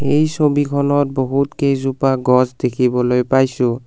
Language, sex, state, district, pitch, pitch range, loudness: Assamese, male, Assam, Kamrup Metropolitan, 135 Hz, 125-140 Hz, -16 LUFS